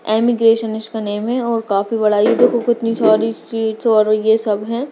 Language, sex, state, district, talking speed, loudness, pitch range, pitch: Hindi, female, Maharashtra, Sindhudurg, 185 wpm, -16 LUFS, 215-230 Hz, 225 Hz